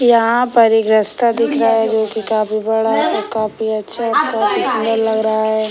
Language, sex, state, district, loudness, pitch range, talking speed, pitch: Hindi, female, Bihar, Sitamarhi, -15 LUFS, 220-230 Hz, 220 wpm, 220 Hz